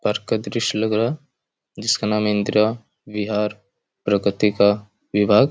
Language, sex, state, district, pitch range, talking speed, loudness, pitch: Hindi, male, Chhattisgarh, Raigarh, 105-110 Hz, 140 wpm, -21 LUFS, 105 Hz